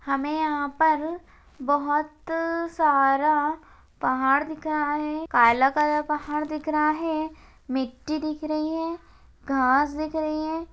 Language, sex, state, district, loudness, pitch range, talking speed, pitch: Hindi, female, Maharashtra, Sindhudurg, -24 LUFS, 285-315 Hz, 130 wpm, 305 Hz